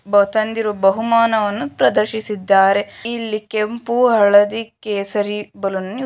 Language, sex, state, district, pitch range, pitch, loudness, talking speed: Kannada, female, Karnataka, Shimoga, 200-225 Hz, 210 Hz, -17 LUFS, 100 wpm